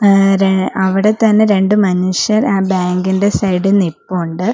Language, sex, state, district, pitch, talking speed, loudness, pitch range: Malayalam, female, Kerala, Kollam, 195 Hz, 130 wpm, -13 LUFS, 185-205 Hz